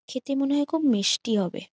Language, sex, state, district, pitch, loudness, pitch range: Bengali, female, West Bengal, Jhargram, 255 Hz, -25 LUFS, 215-280 Hz